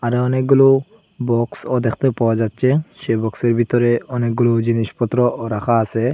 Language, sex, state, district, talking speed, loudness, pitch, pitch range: Bengali, male, Assam, Hailakandi, 125 wpm, -18 LUFS, 120 Hz, 115-130 Hz